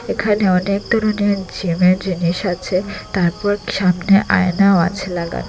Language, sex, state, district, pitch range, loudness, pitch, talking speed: Bengali, female, Assam, Hailakandi, 180-205 Hz, -17 LUFS, 190 Hz, 120 wpm